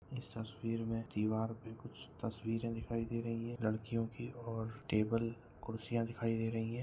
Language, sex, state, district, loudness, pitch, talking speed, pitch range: Hindi, male, Goa, North and South Goa, -40 LUFS, 115 Hz, 175 wpm, 110-115 Hz